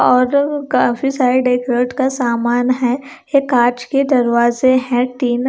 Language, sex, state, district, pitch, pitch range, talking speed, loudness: Hindi, female, Punjab, Kapurthala, 250 Hz, 245-270 Hz, 140 wpm, -15 LUFS